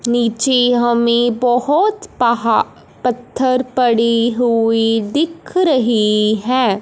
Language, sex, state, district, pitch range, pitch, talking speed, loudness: Hindi, male, Punjab, Fazilka, 230-255 Hz, 240 Hz, 90 wpm, -15 LUFS